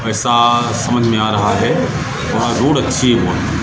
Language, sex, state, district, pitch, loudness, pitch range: Hindi, male, Madhya Pradesh, Katni, 120 Hz, -14 LUFS, 110-120 Hz